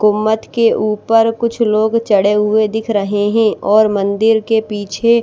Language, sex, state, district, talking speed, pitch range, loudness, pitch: Hindi, male, Odisha, Nuapada, 160 wpm, 210-225 Hz, -14 LUFS, 215 Hz